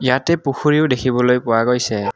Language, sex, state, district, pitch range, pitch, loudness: Assamese, male, Assam, Kamrup Metropolitan, 125-135 Hz, 125 Hz, -17 LUFS